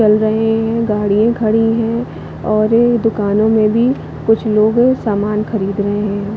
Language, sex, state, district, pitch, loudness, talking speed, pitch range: Hindi, female, Chhattisgarh, Bilaspur, 220 Hz, -14 LUFS, 160 wpm, 210-225 Hz